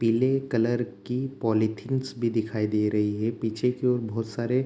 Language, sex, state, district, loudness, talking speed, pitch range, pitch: Hindi, male, Bihar, Darbhanga, -27 LUFS, 195 wpm, 110-125 Hz, 115 Hz